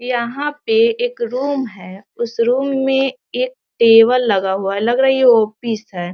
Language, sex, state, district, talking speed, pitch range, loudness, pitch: Hindi, female, Bihar, Sitamarhi, 215 wpm, 225-280 Hz, -16 LUFS, 250 Hz